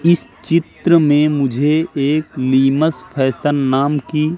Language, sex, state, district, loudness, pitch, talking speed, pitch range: Hindi, male, Madhya Pradesh, Katni, -16 LUFS, 150 Hz, 125 wpm, 135-160 Hz